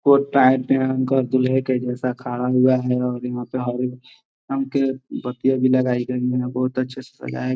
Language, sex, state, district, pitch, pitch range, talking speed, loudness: Hindi, male, Bihar, Gopalganj, 130 Hz, 125-130 Hz, 185 wpm, -21 LUFS